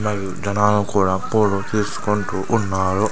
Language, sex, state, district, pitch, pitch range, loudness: Telugu, male, Andhra Pradesh, Sri Satya Sai, 105 Hz, 95-105 Hz, -20 LUFS